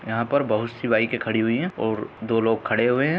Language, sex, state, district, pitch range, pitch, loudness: Hindi, male, Uttar Pradesh, Muzaffarnagar, 110-120 Hz, 115 Hz, -23 LUFS